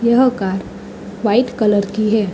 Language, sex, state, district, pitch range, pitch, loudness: Hindi, female, Uttar Pradesh, Hamirpur, 205-235 Hz, 215 Hz, -17 LUFS